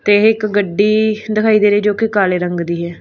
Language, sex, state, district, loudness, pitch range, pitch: Punjabi, female, Punjab, Fazilka, -14 LUFS, 185-215 Hz, 205 Hz